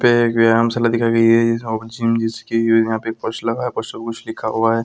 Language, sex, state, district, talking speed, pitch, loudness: Hindi, male, Bihar, Araria, 160 wpm, 115 Hz, -18 LUFS